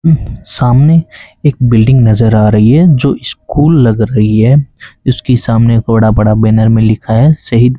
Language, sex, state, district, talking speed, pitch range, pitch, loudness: Hindi, male, Rajasthan, Bikaner, 170 wpm, 110-135 Hz, 115 Hz, -9 LUFS